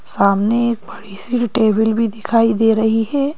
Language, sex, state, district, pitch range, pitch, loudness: Hindi, female, Madhya Pradesh, Bhopal, 220-235 Hz, 225 Hz, -16 LUFS